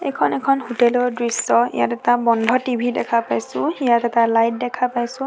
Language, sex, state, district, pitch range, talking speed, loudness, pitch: Assamese, female, Assam, Sonitpur, 235-250 Hz, 180 wpm, -19 LUFS, 240 Hz